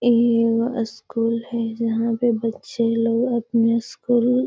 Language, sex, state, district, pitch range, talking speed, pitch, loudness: Magahi, female, Bihar, Gaya, 230-235 Hz, 145 wpm, 230 Hz, -21 LUFS